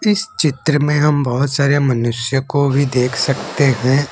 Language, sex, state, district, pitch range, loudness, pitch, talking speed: Hindi, male, Assam, Kamrup Metropolitan, 130-150 Hz, -16 LUFS, 140 Hz, 175 wpm